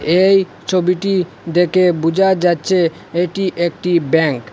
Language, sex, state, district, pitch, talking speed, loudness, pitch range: Bengali, male, Assam, Hailakandi, 180 Hz, 120 wpm, -15 LUFS, 170-185 Hz